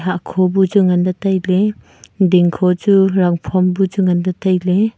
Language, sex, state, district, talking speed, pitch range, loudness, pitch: Wancho, female, Arunachal Pradesh, Longding, 155 wpm, 180-195 Hz, -15 LUFS, 185 Hz